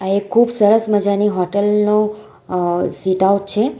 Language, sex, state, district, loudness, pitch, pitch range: Gujarati, female, Gujarat, Valsad, -16 LUFS, 205 Hz, 190-210 Hz